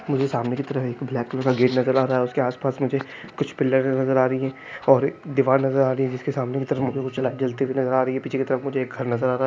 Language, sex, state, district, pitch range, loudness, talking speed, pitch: Hindi, male, Chhattisgarh, Kabirdham, 130-135 Hz, -23 LUFS, 325 wpm, 130 Hz